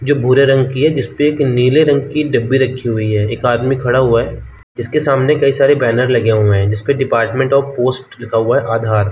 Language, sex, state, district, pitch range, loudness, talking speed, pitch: Hindi, male, Jharkhand, Jamtara, 115-140 Hz, -14 LUFS, 245 wpm, 130 Hz